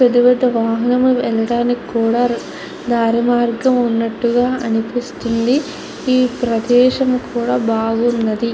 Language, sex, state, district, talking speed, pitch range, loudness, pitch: Telugu, female, Andhra Pradesh, Chittoor, 100 wpm, 230-250 Hz, -16 LUFS, 240 Hz